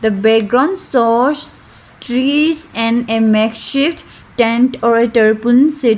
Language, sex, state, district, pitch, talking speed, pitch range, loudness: English, female, Arunachal Pradesh, Lower Dibang Valley, 240 Hz, 120 wpm, 225-275 Hz, -14 LUFS